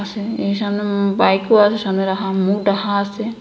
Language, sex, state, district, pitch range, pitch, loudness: Bengali, female, Assam, Hailakandi, 195-210 Hz, 200 Hz, -17 LUFS